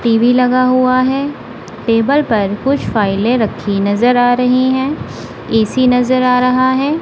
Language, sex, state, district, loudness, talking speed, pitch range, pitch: Hindi, female, Punjab, Kapurthala, -13 LUFS, 155 wpm, 225-260 Hz, 250 Hz